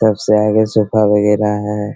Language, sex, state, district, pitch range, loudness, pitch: Hindi, male, Bihar, Araria, 105-110 Hz, -14 LUFS, 105 Hz